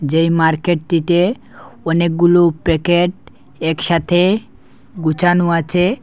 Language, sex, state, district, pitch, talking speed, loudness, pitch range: Bengali, male, Assam, Hailakandi, 170 Hz, 80 wpm, -15 LUFS, 165-175 Hz